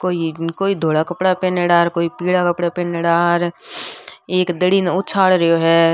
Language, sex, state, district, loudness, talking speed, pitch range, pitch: Rajasthani, female, Rajasthan, Nagaur, -17 LUFS, 190 wpm, 170-185 Hz, 175 Hz